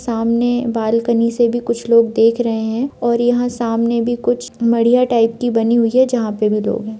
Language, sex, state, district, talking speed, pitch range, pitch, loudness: Hindi, female, Jharkhand, Sahebganj, 215 wpm, 230-240 Hz, 235 Hz, -16 LUFS